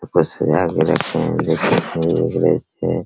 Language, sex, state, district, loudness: Hindi, male, Bihar, Araria, -18 LUFS